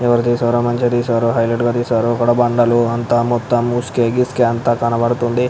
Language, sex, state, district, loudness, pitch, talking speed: Telugu, male, Andhra Pradesh, Anantapur, -16 LUFS, 120 Hz, 150 wpm